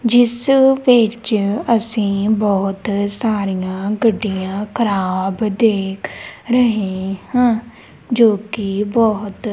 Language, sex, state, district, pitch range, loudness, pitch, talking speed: Punjabi, female, Punjab, Kapurthala, 195-235 Hz, -17 LUFS, 210 Hz, 80 wpm